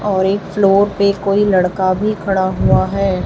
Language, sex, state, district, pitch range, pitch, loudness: Hindi, female, Chhattisgarh, Raipur, 190-200 Hz, 195 Hz, -15 LUFS